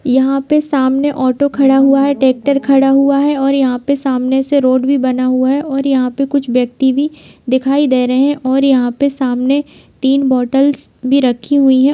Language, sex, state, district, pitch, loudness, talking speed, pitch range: Hindi, female, Bihar, Jamui, 270 Hz, -13 LUFS, 210 wpm, 260-280 Hz